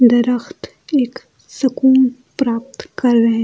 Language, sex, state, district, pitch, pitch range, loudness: Hindi, female, Delhi, New Delhi, 250 Hz, 240-260 Hz, -16 LUFS